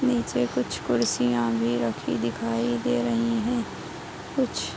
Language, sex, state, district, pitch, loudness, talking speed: Hindi, female, Uttar Pradesh, Jalaun, 120 Hz, -26 LUFS, 140 wpm